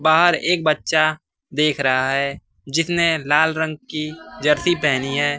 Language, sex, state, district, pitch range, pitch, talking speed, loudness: Hindi, male, Bihar, West Champaran, 145-160 Hz, 155 Hz, 145 wpm, -19 LUFS